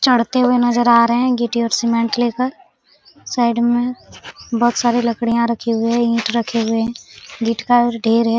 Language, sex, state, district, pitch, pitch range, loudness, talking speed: Hindi, female, Jharkhand, Sahebganj, 235 Hz, 230-240 Hz, -17 LUFS, 195 wpm